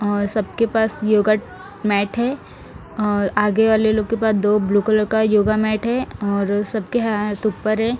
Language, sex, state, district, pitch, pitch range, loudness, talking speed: Hindi, female, Punjab, Fazilka, 215 Hz, 205-220 Hz, -19 LUFS, 175 wpm